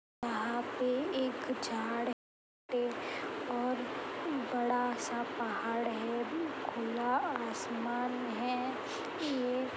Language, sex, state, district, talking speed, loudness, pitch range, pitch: Hindi, female, Uttar Pradesh, Etah, 90 wpm, -36 LUFS, 235-255 Hz, 245 Hz